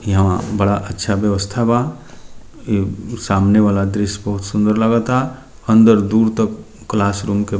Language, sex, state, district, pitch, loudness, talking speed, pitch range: Bhojpuri, male, Bihar, Muzaffarpur, 105 Hz, -16 LUFS, 140 wpm, 100-110 Hz